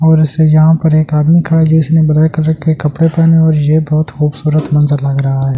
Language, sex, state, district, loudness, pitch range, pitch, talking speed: Hindi, male, Delhi, New Delhi, -11 LUFS, 150-160 Hz, 155 Hz, 235 wpm